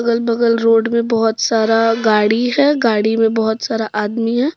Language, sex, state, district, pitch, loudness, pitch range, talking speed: Hindi, female, Jharkhand, Deoghar, 225 Hz, -15 LUFS, 220-235 Hz, 185 wpm